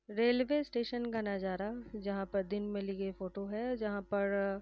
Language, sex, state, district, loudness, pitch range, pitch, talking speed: Hindi, female, Uttar Pradesh, Varanasi, -36 LUFS, 195-235 Hz, 205 Hz, 180 wpm